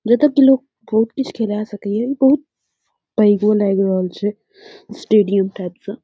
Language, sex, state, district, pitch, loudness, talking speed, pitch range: Maithili, female, Bihar, Saharsa, 215 Hz, -17 LUFS, 160 wpm, 200-270 Hz